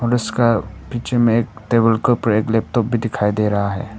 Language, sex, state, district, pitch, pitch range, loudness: Hindi, male, Arunachal Pradesh, Papum Pare, 115 Hz, 105-120 Hz, -18 LUFS